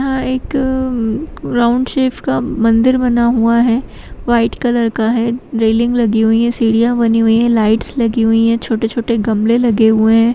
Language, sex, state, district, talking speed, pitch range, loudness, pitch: Kumaoni, female, Uttarakhand, Tehri Garhwal, 175 wpm, 225-245 Hz, -14 LUFS, 235 Hz